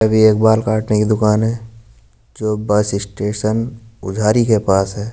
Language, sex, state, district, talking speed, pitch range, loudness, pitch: Hindi, male, Uttar Pradesh, Jyotiba Phule Nagar, 175 wpm, 105-110 Hz, -16 LUFS, 110 Hz